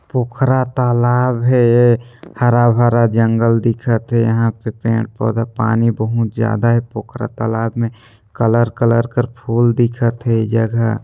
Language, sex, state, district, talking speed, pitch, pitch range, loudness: Hindi, male, Chhattisgarh, Sarguja, 135 wpm, 115 Hz, 115-120 Hz, -16 LUFS